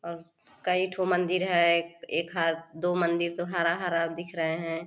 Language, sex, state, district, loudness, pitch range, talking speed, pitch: Hindi, female, Chhattisgarh, Korba, -28 LUFS, 165-175 Hz, 170 wpm, 170 Hz